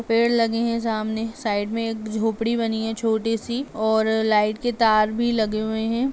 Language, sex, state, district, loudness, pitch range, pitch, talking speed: Hindi, female, Uttar Pradesh, Jalaun, -22 LUFS, 220-230 Hz, 225 Hz, 195 wpm